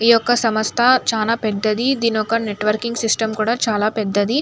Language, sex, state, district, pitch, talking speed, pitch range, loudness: Telugu, female, Andhra Pradesh, Anantapur, 225 Hz, 175 wpm, 215-235 Hz, -18 LUFS